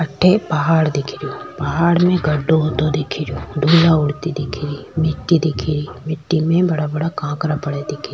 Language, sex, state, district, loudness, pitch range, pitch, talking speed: Rajasthani, female, Rajasthan, Churu, -18 LUFS, 145-165 Hz, 155 Hz, 175 wpm